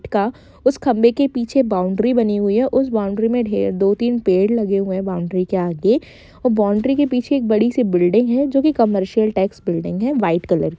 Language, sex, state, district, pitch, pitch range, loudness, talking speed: Hindi, female, Jharkhand, Jamtara, 215 Hz, 190-250 Hz, -18 LUFS, 220 wpm